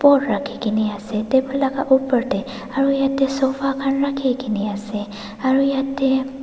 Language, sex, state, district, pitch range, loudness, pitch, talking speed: Nagamese, female, Nagaland, Dimapur, 215-275 Hz, -20 LUFS, 265 Hz, 140 wpm